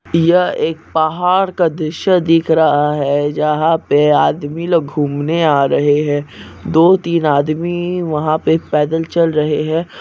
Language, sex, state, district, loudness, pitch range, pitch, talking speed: Hindi, male, Chhattisgarh, Bastar, -14 LUFS, 150-170 Hz, 160 Hz, 150 wpm